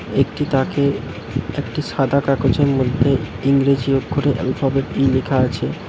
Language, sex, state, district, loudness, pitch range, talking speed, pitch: Bengali, male, West Bengal, Alipurduar, -19 LUFS, 130-140 Hz, 120 wpm, 135 Hz